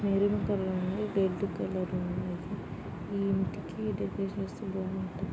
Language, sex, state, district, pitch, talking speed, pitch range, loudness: Telugu, female, Andhra Pradesh, Guntur, 190 Hz, 125 wpm, 185-200 Hz, -33 LUFS